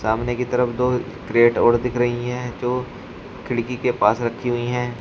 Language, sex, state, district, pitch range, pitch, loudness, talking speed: Hindi, male, Uttar Pradesh, Shamli, 120-125 Hz, 120 Hz, -21 LUFS, 190 wpm